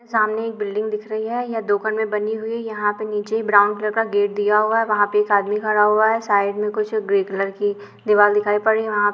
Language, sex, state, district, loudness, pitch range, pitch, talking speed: Hindi, female, Uttar Pradesh, Ghazipur, -20 LUFS, 205-220 Hz, 210 Hz, 250 wpm